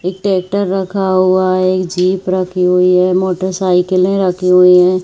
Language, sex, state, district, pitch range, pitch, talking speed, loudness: Hindi, female, Chhattisgarh, Bilaspur, 180-185 Hz, 185 Hz, 145 wpm, -13 LUFS